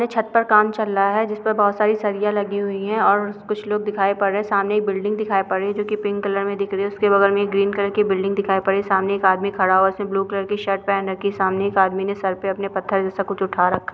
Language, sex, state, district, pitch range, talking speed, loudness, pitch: Hindi, female, Bihar, Lakhisarai, 195-205 Hz, 330 wpm, -20 LUFS, 200 Hz